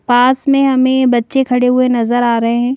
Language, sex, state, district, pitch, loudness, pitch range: Hindi, female, Madhya Pradesh, Bhopal, 250 Hz, -12 LUFS, 240-260 Hz